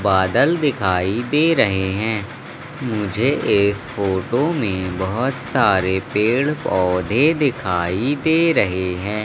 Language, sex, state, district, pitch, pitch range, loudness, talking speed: Hindi, male, Madhya Pradesh, Katni, 105 Hz, 95-135 Hz, -19 LUFS, 105 wpm